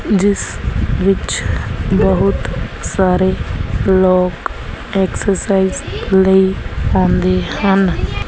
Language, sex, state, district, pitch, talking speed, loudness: Punjabi, female, Punjab, Kapurthala, 190 Hz, 65 wpm, -15 LUFS